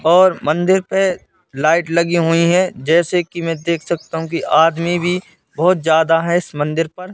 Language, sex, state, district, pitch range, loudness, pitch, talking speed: Hindi, male, Madhya Pradesh, Katni, 160-180 Hz, -16 LUFS, 170 Hz, 185 wpm